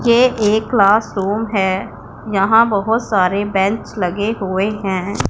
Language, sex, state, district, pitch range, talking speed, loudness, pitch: Hindi, female, Punjab, Pathankot, 195-220 Hz, 125 wpm, -16 LUFS, 205 Hz